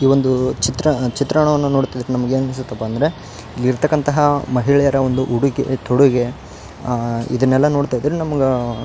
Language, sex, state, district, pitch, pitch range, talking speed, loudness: Kannada, male, Karnataka, Raichur, 130 Hz, 125-140 Hz, 140 wpm, -17 LUFS